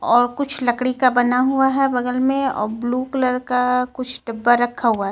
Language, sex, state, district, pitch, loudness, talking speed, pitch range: Hindi, female, Jharkhand, Ranchi, 250 Hz, -19 LUFS, 210 wpm, 240-260 Hz